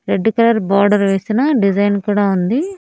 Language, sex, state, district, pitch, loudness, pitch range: Telugu, female, Andhra Pradesh, Annamaya, 205 Hz, -15 LUFS, 200-230 Hz